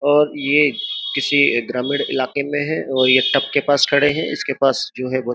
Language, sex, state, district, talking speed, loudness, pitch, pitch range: Hindi, male, Uttar Pradesh, Jyotiba Phule Nagar, 225 wpm, -17 LUFS, 140 Hz, 130-145 Hz